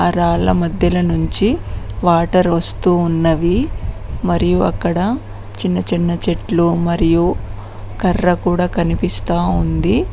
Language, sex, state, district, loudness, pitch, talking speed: Telugu, female, Telangana, Mahabubabad, -16 LUFS, 140 Hz, 100 wpm